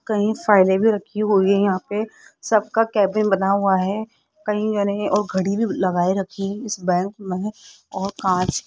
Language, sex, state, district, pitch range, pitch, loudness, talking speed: Hindi, female, Rajasthan, Jaipur, 190-215 Hz, 200 Hz, -20 LUFS, 160 wpm